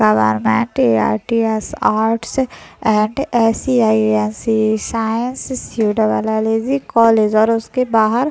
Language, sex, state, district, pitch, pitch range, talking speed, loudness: Hindi, male, Chhattisgarh, Raigarh, 225 Hz, 215-240 Hz, 70 wpm, -16 LUFS